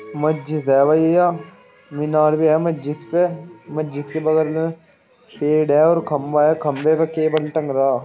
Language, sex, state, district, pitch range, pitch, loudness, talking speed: Hindi, male, Uttar Pradesh, Muzaffarnagar, 150-160 Hz, 155 Hz, -18 LUFS, 165 wpm